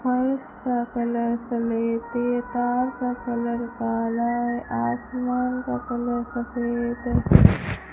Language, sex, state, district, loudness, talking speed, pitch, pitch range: Hindi, female, Rajasthan, Bikaner, -24 LUFS, 115 wpm, 240 Hz, 235-245 Hz